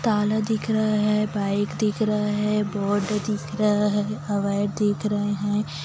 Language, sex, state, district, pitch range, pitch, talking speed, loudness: Hindi, female, Chhattisgarh, Kabirdham, 205-210 Hz, 210 Hz, 155 wpm, -24 LUFS